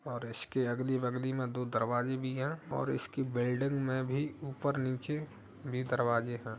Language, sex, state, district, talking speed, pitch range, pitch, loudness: Hindi, male, Uttar Pradesh, Hamirpur, 175 wpm, 120-135 Hz, 130 Hz, -35 LUFS